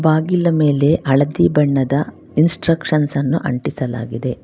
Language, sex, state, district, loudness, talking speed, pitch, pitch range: Kannada, female, Karnataka, Bangalore, -16 LUFS, 95 wpm, 150 Hz, 135-160 Hz